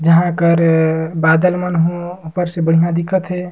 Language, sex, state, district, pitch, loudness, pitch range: Surgujia, male, Chhattisgarh, Sarguja, 170 Hz, -15 LUFS, 165-180 Hz